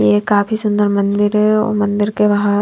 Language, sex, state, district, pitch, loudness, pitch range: Hindi, female, Haryana, Charkhi Dadri, 205 Hz, -15 LUFS, 205-210 Hz